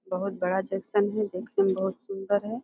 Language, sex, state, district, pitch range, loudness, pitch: Hindi, female, Uttar Pradesh, Deoria, 190-210 Hz, -28 LUFS, 195 Hz